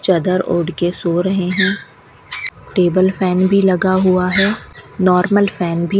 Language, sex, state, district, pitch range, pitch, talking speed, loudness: Hindi, female, Rajasthan, Bikaner, 175-190 Hz, 185 Hz, 160 wpm, -15 LUFS